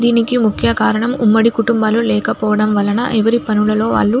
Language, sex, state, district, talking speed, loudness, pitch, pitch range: Telugu, female, Andhra Pradesh, Anantapur, 155 wpm, -14 LUFS, 220 Hz, 210-235 Hz